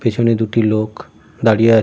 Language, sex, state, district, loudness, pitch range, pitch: Bengali, male, West Bengal, Kolkata, -16 LUFS, 110-115 Hz, 115 Hz